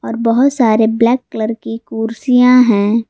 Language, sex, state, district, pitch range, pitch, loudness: Hindi, female, Jharkhand, Garhwa, 225-250 Hz, 230 Hz, -13 LUFS